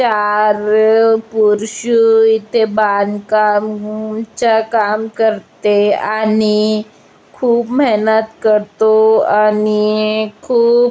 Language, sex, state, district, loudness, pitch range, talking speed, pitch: Marathi, female, Maharashtra, Chandrapur, -13 LUFS, 210-225 Hz, 75 wpm, 215 Hz